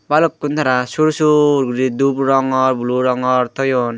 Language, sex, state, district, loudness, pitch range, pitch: Chakma, female, Tripura, Dhalai, -16 LUFS, 125-145 Hz, 135 Hz